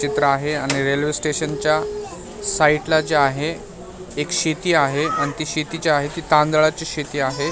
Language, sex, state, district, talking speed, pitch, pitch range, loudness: Marathi, male, Maharashtra, Mumbai Suburban, 175 wpm, 150 Hz, 145-160 Hz, -20 LUFS